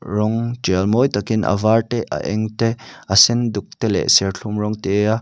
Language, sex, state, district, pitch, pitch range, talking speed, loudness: Mizo, male, Mizoram, Aizawl, 110 Hz, 100-115 Hz, 220 wpm, -18 LUFS